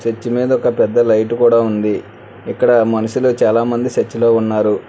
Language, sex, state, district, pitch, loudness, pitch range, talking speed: Telugu, male, Telangana, Hyderabad, 115 Hz, -15 LUFS, 110-120 Hz, 160 wpm